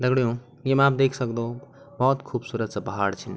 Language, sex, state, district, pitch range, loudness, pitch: Garhwali, male, Uttarakhand, Tehri Garhwal, 115-135 Hz, -25 LUFS, 125 Hz